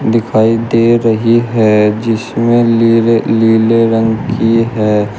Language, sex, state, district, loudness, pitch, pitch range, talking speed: Hindi, male, Uttar Pradesh, Shamli, -11 LUFS, 115 Hz, 110-115 Hz, 115 wpm